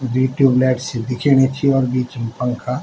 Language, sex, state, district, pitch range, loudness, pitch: Garhwali, male, Uttarakhand, Tehri Garhwal, 125-130 Hz, -17 LUFS, 130 Hz